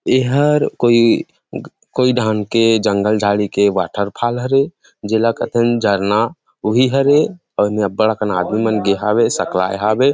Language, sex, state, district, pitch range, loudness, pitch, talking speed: Chhattisgarhi, male, Chhattisgarh, Rajnandgaon, 105-125 Hz, -16 LUFS, 110 Hz, 150 wpm